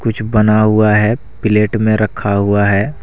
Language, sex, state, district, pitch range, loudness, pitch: Hindi, male, Jharkhand, Deoghar, 100-110 Hz, -13 LUFS, 105 Hz